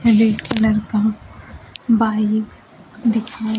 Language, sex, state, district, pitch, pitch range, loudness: Hindi, female, Bihar, Kaimur, 220 Hz, 215-225 Hz, -18 LUFS